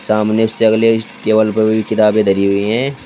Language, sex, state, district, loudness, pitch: Hindi, male, Uttar Pradesh, Shamli, -14 LUFS, 110 Hz